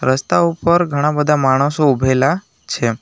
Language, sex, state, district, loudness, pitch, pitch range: Gujarati, male, Gujarat, Navsari, -15 LUFS, 145 Hz, 130-160 Hz